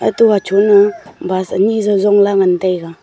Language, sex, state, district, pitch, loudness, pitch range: Wancho, female, Arunachal Pradesh, Longding, 200 Hz, -13 LUFS, 185-210 Hz